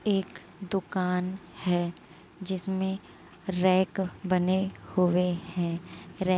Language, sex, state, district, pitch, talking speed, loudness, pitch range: Hindi, female, Uttar Pradesh, Muzaffarnagar, 185 Hz, 95 wpm, -29 LUFS, 175-190 Hz